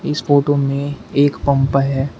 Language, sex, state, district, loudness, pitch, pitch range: Hindi, male, Uttar Pradesh, Shamli, -17 LUFS, 140 Hz, 135-145 Hz